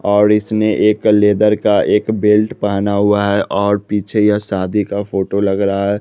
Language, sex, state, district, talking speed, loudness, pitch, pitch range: Hindi, male, Bihar, West Champaran, 190 wpm, -14 LUFS, 105 Hz, 100-105 Hz